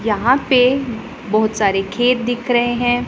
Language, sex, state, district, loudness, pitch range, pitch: Hindi, female, Punjab, Pathankot, -16 LUFS, 215-250 Hz, 240 Hz